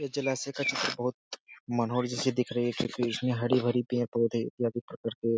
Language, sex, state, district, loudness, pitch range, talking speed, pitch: Hindi, male, Bihar, Jamui, -30 LUFS, 120-125 Hz, 200 wpm, 120 Hz